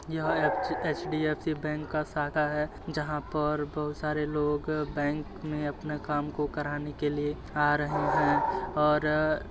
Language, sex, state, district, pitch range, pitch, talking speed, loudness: Hindi, male, Uttar Pradesh, Muzaffarnagar, 150-155 Hz, 150 Hz, 165 wpm, -30 LUFS